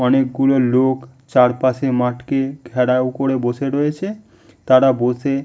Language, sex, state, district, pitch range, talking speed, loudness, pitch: Bengali, male, West Bengal, Malda, 125-135 Hz, 120 wpm, -17 LUFS, 130 Hz